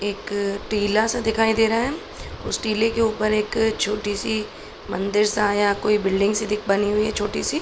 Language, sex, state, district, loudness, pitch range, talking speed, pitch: Hindi, male, Bihar, Araria, -22 LUFS, 205-220 Hz, 205 wpm, 210 Hz